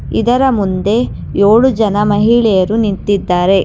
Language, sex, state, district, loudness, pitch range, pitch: Kannada, female, Karnataka, Bangalore, -12 LUFS, 195-230 Hz, 205 Hz